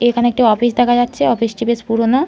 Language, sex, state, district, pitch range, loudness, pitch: Bengali, female, West Bengal, Malda, 230-245 Hz, -15 LUFS, 240 Hz